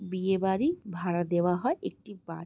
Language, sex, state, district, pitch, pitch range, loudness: Bengali, female, West Bengal, Jalpaiguri, 190 Hz, 175-205 Hz, -29 LUFS